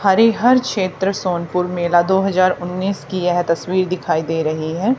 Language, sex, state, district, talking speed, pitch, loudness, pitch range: Hindi, female, Haryana, Charkhi Dadri, 170 wpm, 185 Hz, -18 LUFS, 175-195 Hz